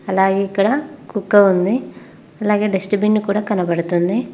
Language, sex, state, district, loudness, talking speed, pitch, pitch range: Telugu, female, Telangana, Mahabubabad, -17 LUFS, 125 wpm, 205 Hz, 190-210 Hz